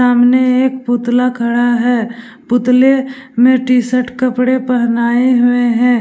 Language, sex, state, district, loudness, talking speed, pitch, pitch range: Hindi, female, Bihar, Vaishali, -13 LUFS, 130 wpm, 245 Hz, 240-255 Hz